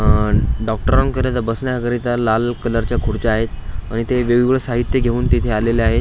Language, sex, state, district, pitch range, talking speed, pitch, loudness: Marathi, male, Maharashtra, Washim, 110-125 Hz, 140 wpm, 120 Hz, -18 LUFS